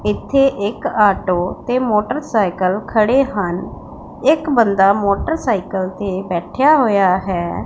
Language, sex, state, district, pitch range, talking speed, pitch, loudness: Punjabi, female, Punjab, Pathankot, 190-255 Hz, 110 wpm, 205 Hz, -16 LUFS